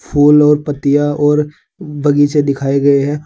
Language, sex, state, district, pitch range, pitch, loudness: Hindi, male, Uttar Pradesh, Saharanpur, 145-150 Hz, 145 Hz, -12 LUFS